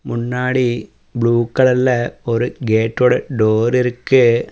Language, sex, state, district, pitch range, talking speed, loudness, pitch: Tamil, male, Tamil Nadu, Namakkal, 115-125 Hz, 95 wpm, -16 LUFS, 120 Hz